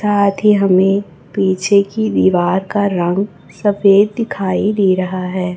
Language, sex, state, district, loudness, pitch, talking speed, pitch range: Hindi, male, Chhattisgarh, Raipur, -15 LUFS, 195 Hz, 130 wpm, 185-205 Hz